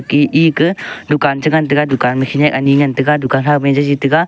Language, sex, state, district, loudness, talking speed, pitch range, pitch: Wancho, male, Arunachal Pradesh, Longding, -13 LUFS, 250 wpm, 140-150 Hz, 145 Hz